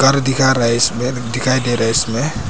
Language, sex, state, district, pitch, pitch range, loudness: Hindi, male, Arunachal Pradesh, Papum Pare, 125 Hz, 115-135 Hz, -15 LUFS